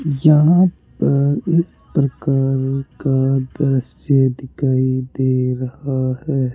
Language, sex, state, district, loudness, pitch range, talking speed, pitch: Hindi, male, Rajasthan, Jaipur, -18 LUFS, 130-145 Hz, 90 wpm, 135 Hz